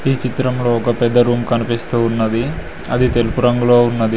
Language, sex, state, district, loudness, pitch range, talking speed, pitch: Telugu, male, Telangana, Mahabubabad, -16 LUFS, 115-125 Hz, 160 wpm, 120 Hz